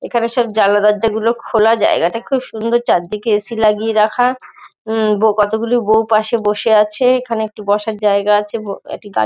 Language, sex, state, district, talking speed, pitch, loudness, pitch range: Bengali, female, West Bengal, North 24 Parganas, 180 wpm, 220 Hz, -15 LUFS, 210-230 Hz